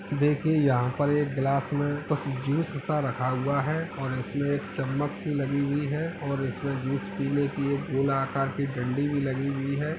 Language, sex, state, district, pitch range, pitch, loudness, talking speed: Hindi, male, Uttar Pradesh, Etah, 135-145 Hz, 140 Hz, -28 LUFS, 210 wpm